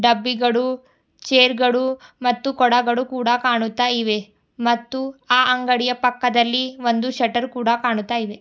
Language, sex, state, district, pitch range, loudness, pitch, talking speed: Kannada, female, Karnataka, Bidar, 235-255 Hz, -19 LUFS, 245 Hz, 115 wpm